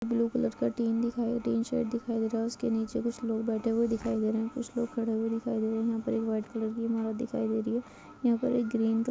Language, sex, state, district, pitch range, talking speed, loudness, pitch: Hindi, female, Bihar, Kishanganj, 225-235 Hz, 305 wpm, -31 LUFS, 230 Hz